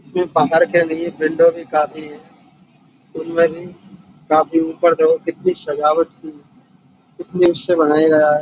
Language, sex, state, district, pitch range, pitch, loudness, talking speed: Hindi, male, Uttar Pradesh, Budaun, 155-175 Hz, 165 Hz, -16 LUFS, 150 wpm